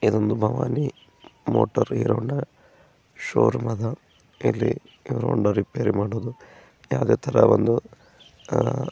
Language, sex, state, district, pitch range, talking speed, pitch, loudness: Kannada, male, Karnataka, Gulbarga, 105-120 Hz, 85 wpm, 115 Hz, -23 LUFS